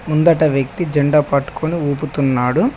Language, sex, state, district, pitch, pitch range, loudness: Telugu, male, Telangana, Mahabubabad, 150 Hz, 140-160 Hz, -16 LUFS